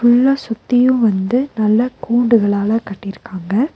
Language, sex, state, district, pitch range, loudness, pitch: Tamil, female, Tamil Nadu, Nilgiris, 205-245 Hz, -15 LUFS, 230 Hz